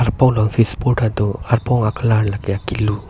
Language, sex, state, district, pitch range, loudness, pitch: Karbi, male, Assam, Karbi Anglong, 105-120 Hz, -18 LUFS, 110 Hz